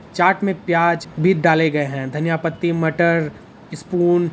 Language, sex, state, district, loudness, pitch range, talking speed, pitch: Hindi, male, Bihar, Araria, -18 LUFS, 160-175 Hz, 165 wpm, 170 Hz